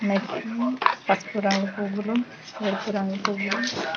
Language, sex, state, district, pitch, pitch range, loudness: Telugu, female, Andhra Pradesh, Krishna, 205 Hz, 195-220 Hz, -26 LUFS